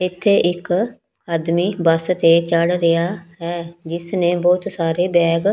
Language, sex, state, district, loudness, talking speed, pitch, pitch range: Punjabi, female, Punjab, Pathankot, -18 LUFS, 150 wpm, 175 Hz, 165-180 Hz